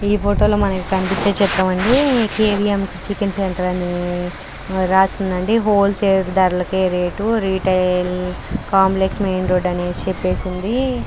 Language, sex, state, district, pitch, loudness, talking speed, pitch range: Telugu, female, Andhra Pradesh, Krishna, 190 Hz, -18 LUFS, 135 wpm, 185-205 Hz